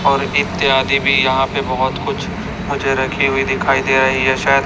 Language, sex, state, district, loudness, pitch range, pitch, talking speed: Hindi, male, Chhattisgarh, Raipur, -16 LUFS, 130-135 Hz, 135 Hz, 205 wpm